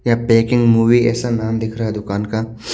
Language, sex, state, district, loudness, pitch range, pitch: Hindi, male, Haryana, Charkhi Dadri, -16 LUFS, 110-120 Hz, 115 Hz